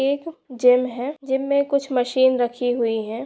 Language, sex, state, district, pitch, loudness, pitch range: Hindi, female, Bihar, Saran, 260 Hz, -21 LUFS, 245-280 Hz